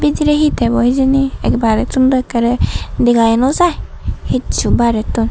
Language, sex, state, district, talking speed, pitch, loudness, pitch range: Chakma, female, Tripura, Dhalai, 135 wpm, 255 Hz, -14 LUFS, 235-270 Hz